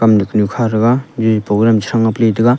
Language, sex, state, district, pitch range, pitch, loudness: Wancho, male, Arunachal Pradesh, Longding, 110-115 Hz, 110 Hz, -14 LUFS